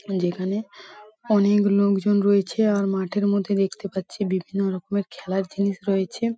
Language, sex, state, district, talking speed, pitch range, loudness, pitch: Bengali, female, West Bengal, Paschim Medinipur, 130 wpm, 190-205 Hz, -23 LUFS, 200 Hz